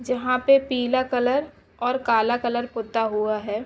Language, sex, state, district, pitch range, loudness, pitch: Hindi, female, Uttar Pradesh, Ghazipur, 225-255 Hz, -23 LUFS, 245 Hz